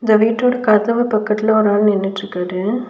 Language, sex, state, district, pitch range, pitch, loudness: Tamil, female, Tamil Nadu, Nilgiris, 205-225 Hz, 215 Hz, -16 LUFS